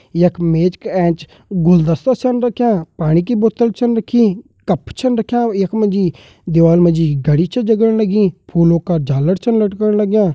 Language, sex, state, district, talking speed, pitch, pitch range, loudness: Hindi, male, Uttarakhand, Uttarkashi, 180 wpm, 190 Hz, 170-225 Hz, -15 LUFS